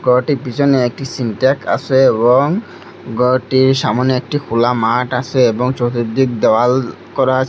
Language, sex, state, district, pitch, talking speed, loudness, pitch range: Bengali, male, Assam, Hailakandi, 130 Hz, 135 wpm, -15 LUFS, 125-135 Hz